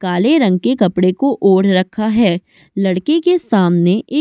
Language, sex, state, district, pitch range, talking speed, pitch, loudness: Hindi, female, Uttar Pradesh, Budaun, 185-250 Hz, 185 wpm, 195 Hz, -14 LUFS